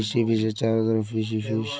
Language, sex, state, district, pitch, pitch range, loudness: Hindi, male, Bihar, Kishanganj, 110 Hz, 110-115 Hz, -25 LUFS